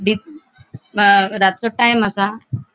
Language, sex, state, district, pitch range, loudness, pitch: Konkani, female, Goa, North and South Goa, 195-230 Hz, -16 LUFS, 205 Hz